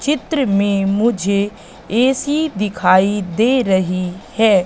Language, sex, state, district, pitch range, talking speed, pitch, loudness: Hindi, female, Madhya Pradesh, Katni, 190-245 Hz, 105 wpm, 205 Hz, -16 LUFS